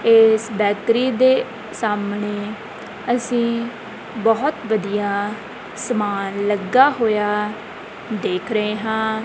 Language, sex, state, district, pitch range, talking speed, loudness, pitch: Punjabi, male, Punjab, Kapurthala, 205-230 Hz, 85 wpm, -20 LUFS, 215 Hz